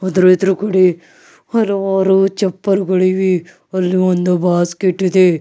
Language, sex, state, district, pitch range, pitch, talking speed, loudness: Kannada, male, Karnataka, Bidar, 180-190 Hz, 185 Hz, 90 wpm, -15 LUFS